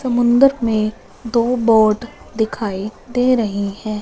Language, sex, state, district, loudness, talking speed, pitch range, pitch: Hindi, female, Punjab, Fazilka, -17 LUFS, 120 wpm, 215-240 Hz, 225 Hz